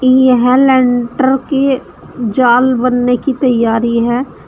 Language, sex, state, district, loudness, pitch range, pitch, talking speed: Hindi, female, Uttar Pradesh, Shamli, -12 LUFS, 245-260 Hz, 255 Hz, 120 wpm